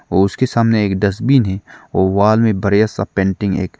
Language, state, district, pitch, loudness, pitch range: Hindi, Arunachal Pradesh, Lower Dibang Valley, 100 Hz, -15 LUFS, 95-110 Hz